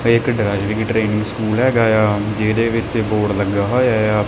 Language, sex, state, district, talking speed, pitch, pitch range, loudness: Punjabi, male, Punjab, Kapurthala, 170 wpm, 110 Hz, 105-115 Hz, -17 LUFS